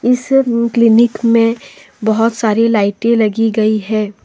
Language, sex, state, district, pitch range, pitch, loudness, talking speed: Hindi, female, Jharkhand, Deoghar, 215-235 Hz, 230 Hz, -13 LUFS, 125 wpm